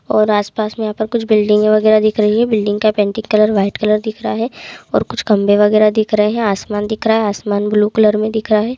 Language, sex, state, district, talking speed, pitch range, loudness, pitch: Hindi, male, West Bengal, Kolkata, 275 wpm, 210-220 Hz, -14 LUFS, 215 Hz